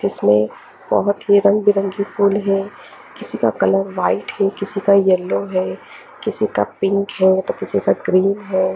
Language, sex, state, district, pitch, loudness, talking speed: Hindi, female, Chandigarh, Chandigarh, 195 Hz, -18 LUFS, 165 wpm